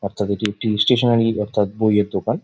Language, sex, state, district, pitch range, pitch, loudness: Bengali, male, West Bengal, Jhargram, 105-115 Hz, 105 Hz, -19 LUFS